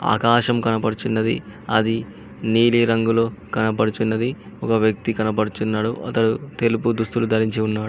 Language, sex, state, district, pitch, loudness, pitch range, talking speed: Telugu, male, Telangana, Mahabubabad, 110 Hz, -21 LUFS, 110-115 Hz, 105 wpm